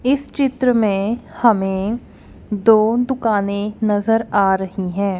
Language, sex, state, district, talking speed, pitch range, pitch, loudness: Hindi, female, Punjab, Kapurthala, 115 wpm, 200-235 Hz, 215 Hz, -18 LUFS